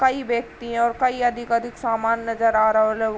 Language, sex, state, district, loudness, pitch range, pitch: Hindi, female, Uttar Pradesh, Varanasi, -21 LUFS, 225-240 Hz, 235 Hz